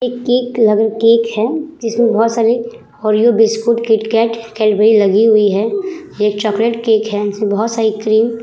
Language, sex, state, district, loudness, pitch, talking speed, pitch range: Hindi, female, Uttar Pradesh, Hamirpur, -14 LUFS, 225 Hz, 170 wpm, 215-235 Hz